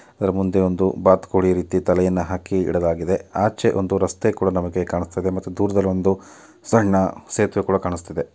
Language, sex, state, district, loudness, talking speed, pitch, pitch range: Kannada, male, Karnataka, Dakshina Kannada, -20 LUFS, 160 wpm, 95 Hz, 90-95 Hz